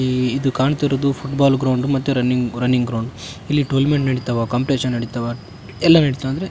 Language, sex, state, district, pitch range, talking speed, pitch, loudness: Kannada, male, Karnataka, Raichur, 125-140 Hz, 165 wpm, 130 Hz, -19 LUFS